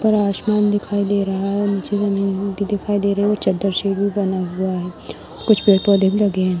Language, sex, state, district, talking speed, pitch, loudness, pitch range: Hindi, female, Bihar, Darbhanga, 235 wpm, 200 Hz, -18 LUFS, 190-205 Hz